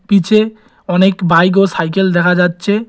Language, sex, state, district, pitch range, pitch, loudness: Bengali, male, West Bengal, Cooch Behar, 180-205 Hz, 190 Hz, -12 LUFS